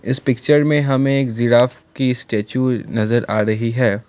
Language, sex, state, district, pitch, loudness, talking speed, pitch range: Hindi, male, Assam, Kamrup Metropolitan, 125 Hz, -17 LUFS, 175 wpm, 115-135 Hz